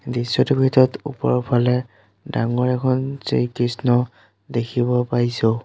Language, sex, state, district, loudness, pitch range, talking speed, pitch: Assamese, male, Assam, Sonitpur, -20 LUFS, 115-125 Hz, 95 wpm, 120 Hz